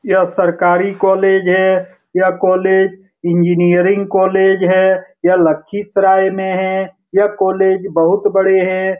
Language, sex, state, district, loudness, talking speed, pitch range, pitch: Hindi, male, Bihar, Lakhisarai, -13 LUFS, 120 wpm, 185-190 Hz, 190 Hz